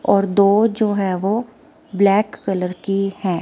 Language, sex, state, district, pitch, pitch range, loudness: Hindi, female, Himachal Pradesh, Shimla, 200 Hz, 190-205 Hz, -18 LUFS